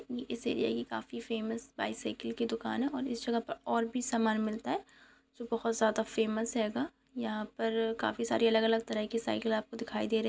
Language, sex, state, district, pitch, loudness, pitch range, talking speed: Hindi, female, Bihar, Sitamarhi, 225 Hz, -34 LUFS, 215-230 Hz, 150 wpm